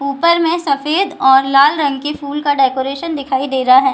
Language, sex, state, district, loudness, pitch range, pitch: Hindi, female, Bihar, Jahanabad, -14 LUFS, 270-305 Hz, 280 Hz